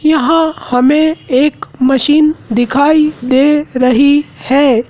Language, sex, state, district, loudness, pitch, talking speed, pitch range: Hindi, male, Madhya Pradesh, Dhar, -11 LUFS, 285 Hz, 100 wpm, 255-310 Hz